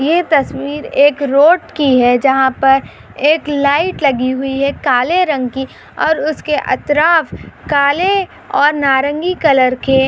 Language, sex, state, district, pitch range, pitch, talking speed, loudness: Hindi, female, Maharashtra, Pune, 270-310 Hz, 285 Hz, 150 wpm, -13 LUFS